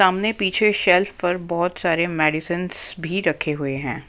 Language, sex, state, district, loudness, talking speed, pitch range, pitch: Hindi, female, Punjab, Pathankot, -21 LUFS, 160 wpm, 165-185 Hz, 175 Hz